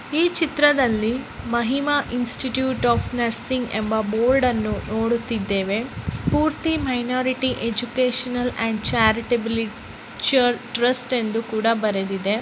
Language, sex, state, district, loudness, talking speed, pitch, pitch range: Kannada, male, Karnataka, Bellary, -21 LUFS, 85 wpm, 240 Hz, 225-255 Hz